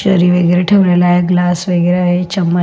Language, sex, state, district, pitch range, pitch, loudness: Marathi, female, Maharashtra, Solapur, 175-180 Hz, 180 Hz, -12 LUFS